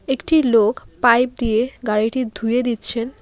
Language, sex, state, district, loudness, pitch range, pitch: Bengali, female, West Bengal, Alipurduar, -18 LUFS, 225-255 Hz, 235 Hz